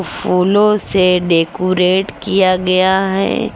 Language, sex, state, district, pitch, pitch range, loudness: Hindi, female, Uttar Pradesh, Lucknow, 185 Hz, 180-190 Hz, -13 LUFS